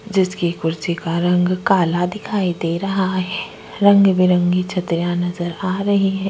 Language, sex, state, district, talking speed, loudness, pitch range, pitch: Hindi, female, Chhattisgarh, Korba, 160 wpm, -18 LUFS, 175-195 Hz, 180 Hz